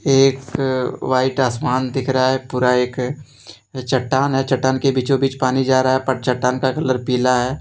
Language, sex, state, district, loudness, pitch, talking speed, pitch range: Hindi, male, Jharkhand, Deoghar, -18 LUFS, 130 Hz, 190 wpm, 125-135 Hz